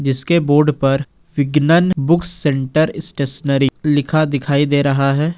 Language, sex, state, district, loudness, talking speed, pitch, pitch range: Hindi, male, Jharkhand, Ranchi, -16 LUFS, 135 wpm, 145 Hz, 140-160 Hz